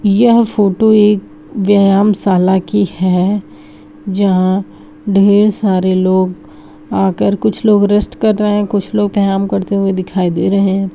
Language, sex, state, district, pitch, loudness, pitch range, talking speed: Hindi, female, Bihar, Araria, 195 Hz, -13 LUFS, 185-205 Hz, 140 wpm